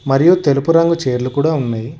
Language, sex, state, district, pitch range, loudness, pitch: Telugu, male, Telangana, Hyderabad, 130-165 Hz, -15 LUFS, 140 Hz